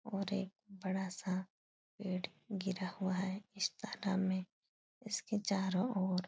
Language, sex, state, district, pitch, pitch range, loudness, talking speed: Hindi, female, Bihar, Supaul, 190 Hz, 185-200 Hz, -39 LUFS, 135 wpm